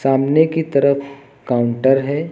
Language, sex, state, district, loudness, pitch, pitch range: Hindi, male, Uttar Pradesh, Lucknow, -16 LUFS, 140 Hz, 135-145 Hz